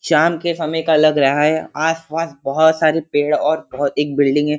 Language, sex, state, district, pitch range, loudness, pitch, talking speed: Hindi, male, Uttar Pradesh, Varanasi, 145-160 Hz, -17 LUFS, 155 Hz, 220 wpm